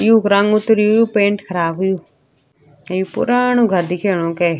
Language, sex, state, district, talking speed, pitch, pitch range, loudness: Garhwali, female, Uttarakhand, Tehri Garhwal, 155 wpm, 190 Hz, 170-215 Hz, -16 LUFS